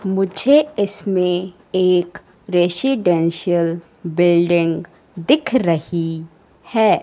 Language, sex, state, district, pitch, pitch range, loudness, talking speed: Hindi, female, Madhya Pradesh, Katni, 180 Hz, 170-200 Hz, -18 LUFS, 70 wpm